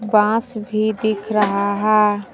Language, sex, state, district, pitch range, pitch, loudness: Hindi, female, Jharkhand, Palamu, 205-215 Hz, 215 Hz, -18 LUFS